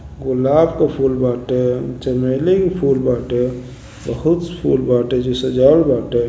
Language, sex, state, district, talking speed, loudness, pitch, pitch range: Bhojpuri, male, Uttar Pradesh, Gorakhpur, 125 wpm, -17 LUFS, 130 Hz, 125-140 Hz